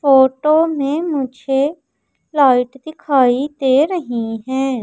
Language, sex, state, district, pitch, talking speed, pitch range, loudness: Hindi, female, Madhya Pradesh, Umaria, 275 Hz, 100 wpm, 260-305 Hz, -16 LUFS